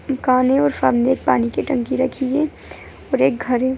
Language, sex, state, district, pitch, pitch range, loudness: Hindi, male, Bihar, Gaya, 260 Hz, 250-270 Hz, -18 LUFS